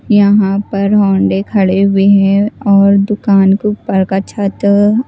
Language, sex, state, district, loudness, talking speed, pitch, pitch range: Hindi, female, Bihar, West Champaran, -11 LUFS, 155 wpm, 200 Hz, 195-205 Hz